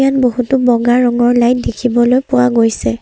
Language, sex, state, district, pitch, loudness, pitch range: Assamese, female, Assam, Sonitpur, 245 Hz, -12 LUFS, 240-250 Hz